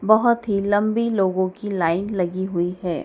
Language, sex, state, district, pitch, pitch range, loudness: Hindi, female, Madhya Pradesh, Dhar, 195 Hz, 180-210 Hz, -21 LUFS